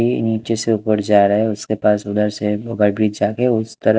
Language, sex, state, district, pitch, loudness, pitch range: Hindi, male, Punjab, Kapurthala, 110 Hz, -17 LUFS, 105-110 Hz